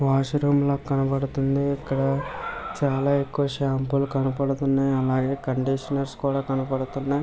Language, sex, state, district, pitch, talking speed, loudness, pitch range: Telugu, male, Andhra Pradesh, Visakhapatnam, 135 Hz, 100 wpm, -24 LUFS, 135-140 Hz